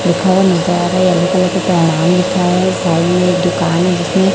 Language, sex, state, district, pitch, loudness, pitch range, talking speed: Hindi, male, Chhattisgarh, Raipur, 180 Hz, -13 LUFS, 175-185 Hz, 40 wpm